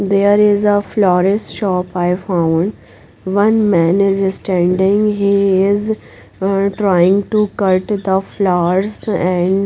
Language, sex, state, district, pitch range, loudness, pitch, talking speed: English, female, Punjab, Pathankot, 185-205 Hz, -15 LUFS, 195 Hz, 125 wpm